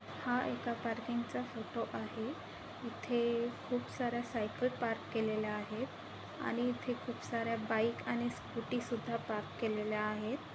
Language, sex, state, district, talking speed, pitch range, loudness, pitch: Marathi, female, Maharashtra, Nagpur, 130 wpm, 220-240 Hz, -38 LUFS, 235 Hz